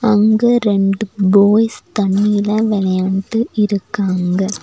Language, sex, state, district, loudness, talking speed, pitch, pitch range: Tamil, female, Tamil Nadu, Nilgiris, -15 LUFS, 80 wpm, 205 Hz, 195-215 Hz